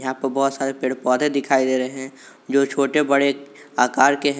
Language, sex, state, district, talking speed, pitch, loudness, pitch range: Hindi, male, Jharkhand, Garhwa, 220 wpm, 135 Hz, -20 LUFS, 130-140 Hz